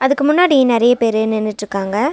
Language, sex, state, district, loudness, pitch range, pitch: Tamil, female, Tamil Nadu, Nilgiris, -15 LUFS, 215-280 Hz, 235 Hz